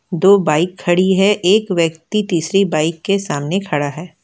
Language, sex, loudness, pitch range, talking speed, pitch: Hindi, female, -16 LUFS, 160-195 Hz, 170 wpm, 180 Hz